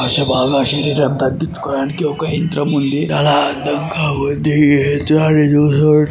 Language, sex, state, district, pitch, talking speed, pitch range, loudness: Telugu, male, Andhra Pradesh, Srikakulam, 145 Hz, 90 wpm, 140-150 Hz, -14 LUFS